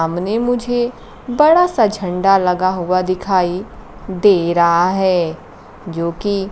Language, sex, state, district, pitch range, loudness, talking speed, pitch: Hindi, female, Bihar, Kaimur, 175-215 Hz, -16 LUFS, 120 wpm, 185 Hz